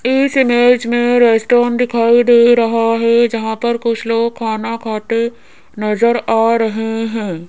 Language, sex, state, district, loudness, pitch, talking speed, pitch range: Hindi, female, Rajasthan, Jaipur, -14 LUFS, 230 Hz, 145 wpm, 225-240 Hz